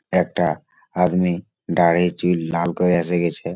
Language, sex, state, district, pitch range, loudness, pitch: Bengali, male, West Bengal, Malda, 85-90 Hz, -20 LUFS, 90 Hz